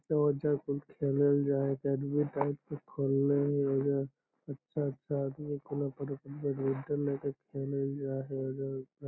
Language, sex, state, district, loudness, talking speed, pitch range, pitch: Magahi, male, Bihar, Lakhisarai, -33 LUFS, 130 wpm, 135-145 Hz, 140 Hz